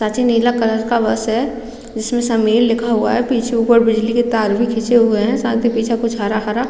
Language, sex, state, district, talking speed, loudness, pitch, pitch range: Hindi, female, Chhattisgarh, Raigarh, 225 wpm, -16 LUFS, 230 Hz, 225-240 Hz